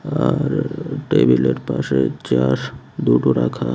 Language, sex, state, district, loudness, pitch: Bengali, male, Tripura, West Tripura, -18 LUFS, 65 Hz